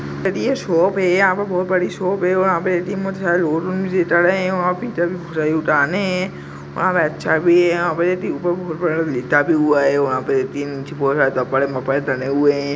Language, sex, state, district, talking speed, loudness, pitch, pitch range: Hindi, female, Bihar, Purnia, 110 wpm, -18 LUFS, 170 Hz, 140-185 Hz